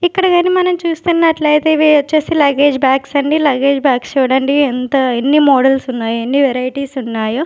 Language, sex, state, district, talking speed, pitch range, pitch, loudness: Telugu, female, Andhra Pradesh, Sri Satya Sai, 155 wpm, 265-310 Hz, 280 Hz, -13 LUFS